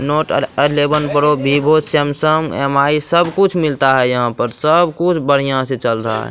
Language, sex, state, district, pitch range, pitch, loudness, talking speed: Maithili, male, Bihar, Madhepura, 135-155 Hz, 145 Hz, -14 LUFS, 190 wpm